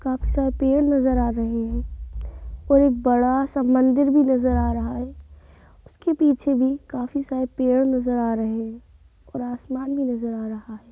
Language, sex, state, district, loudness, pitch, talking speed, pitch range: Hindi, female, Uttar Pradesh, Deoria, -22 LUFS, 250 Hz, 185 wpm, 225-270 Hz